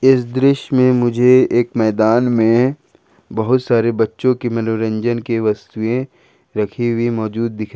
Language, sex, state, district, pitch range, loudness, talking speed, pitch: Hindi, male, Jharkhand, Ranchi, 110-125 Hz, -16 LUFS, 145 wpm, 120 Hz